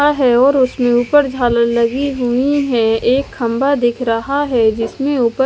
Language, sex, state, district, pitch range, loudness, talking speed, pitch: Hindi, female, Haryana, Charkhi Dadri, 235-275 Hz, -15 LUFS, 175 wpm, 250 Hz